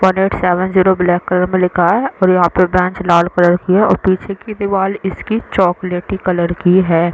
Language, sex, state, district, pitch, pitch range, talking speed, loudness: Hindi, female, Chhattisgarh, Raigarh, 185 Hz, 180-190 Hz, 220 wpm, -14 LUFS